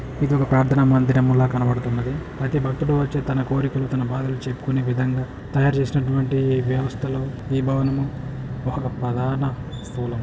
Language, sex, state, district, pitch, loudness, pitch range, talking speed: Telugu, male, Telangana, Nalgonda, 130 Hz, -22 LUFS, 130-135 Hz, 140 wpm